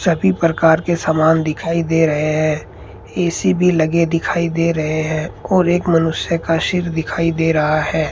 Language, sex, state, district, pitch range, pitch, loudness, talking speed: Hindi, male, Rajasthan, Bikaner, 155-170 Hz, 165 Hz, -16 LUFS, 175 wpm